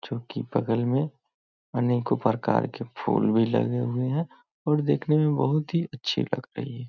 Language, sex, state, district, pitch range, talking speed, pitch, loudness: Hindi, male, Bihar, Muzaffarpur, 120-150 Hz, 165 wpm, 135 Hz, -26 LUFS